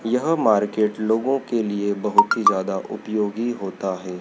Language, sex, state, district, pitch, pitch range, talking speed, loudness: Hindi, male, Madhya Pradesh, Dhar, 105 Hz, 100-115 Hz, 155 wpm, -21 LUFS